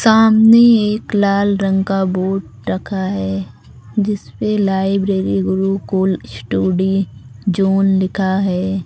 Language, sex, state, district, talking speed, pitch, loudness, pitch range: Hindi, female, Uttar Pradesh, Lucknow, 110 wpm, 190 Hz, -16 LUFS, 185-200 Hz